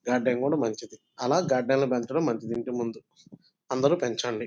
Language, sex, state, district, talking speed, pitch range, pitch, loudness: Telugu, male, Andhra Pradesh, Guntur, 160 wpm, 120-140 Hz, 125 Hz, -27 LUFS